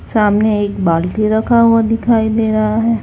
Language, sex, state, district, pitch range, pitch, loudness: Hindi, female, Chhattisgarh, Raipur, 210-225 Hz, 220 Hz, -14 LUFS